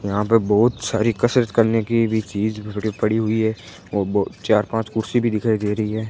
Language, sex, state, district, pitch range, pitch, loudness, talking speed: Hindi, female, Rajasthan, Bikaner, 105-115 Hz, 110 Hz, -20 LUFS, 225 wpm